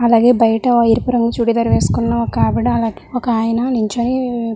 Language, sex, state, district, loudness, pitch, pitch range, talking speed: Telugu, female, Andhra Pradesh, Visakhapatnam, -15 LUFS, 230 Hz, 225-245 Hz, 160 wpm